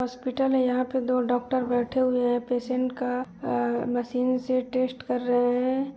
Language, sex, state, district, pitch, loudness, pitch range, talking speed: Hindi, female, Uttar Pradesh, Jyotiba Phule Nagar, 250 Hz, -26 LUFS, 245-255 Hz, 180 wpm